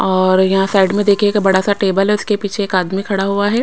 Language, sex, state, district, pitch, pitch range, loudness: Hindi, female, Chhattisgarh, Raipur, 195 Hz, 190-205 Hz, -15 LUFS